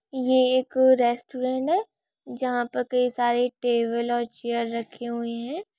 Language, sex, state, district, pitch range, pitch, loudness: Hindi, female, Andhra Pradesh, Chittoor, 240-260 Hz, 245 Hz, -25 LUFS